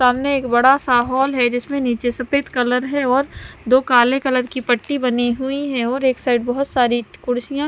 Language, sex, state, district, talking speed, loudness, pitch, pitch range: Hindi, male, Punjab, Fazilka, 205 wpm, -18 LUFS, 255 Hz, 245-270 Hz